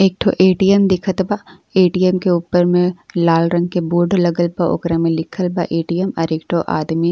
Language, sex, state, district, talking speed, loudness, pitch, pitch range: Bhojpuri, female, Uttar Pradesh, Ghazipur, 200 wpm, -16 LUFS, 175 Hz, 170-185 Hz